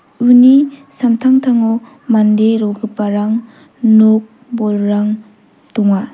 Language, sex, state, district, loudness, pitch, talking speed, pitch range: Garo, female, Meghalaya, South Garo Hills, -13 LUFS, 225 Hz, 70 wpm, 215-255 Hz